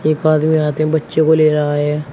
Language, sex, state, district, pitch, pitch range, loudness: Hindi, male, Uttar Pradesh, Shamli, 155 Hz, 150-155 Hz, -15 LUFS